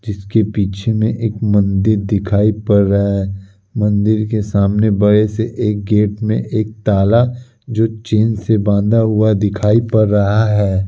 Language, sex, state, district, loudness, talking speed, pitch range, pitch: Hindi, male, Bihar, Kishanganj, -15 LUFS, 160 wpm, 100-110 Hz, 105 Hz